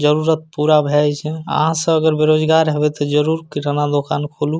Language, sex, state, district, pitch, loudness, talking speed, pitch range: Maithili, male, Bihar, Madhepura, 150 Hz, -17 LUFS, 210 wpm, 145-160 Hz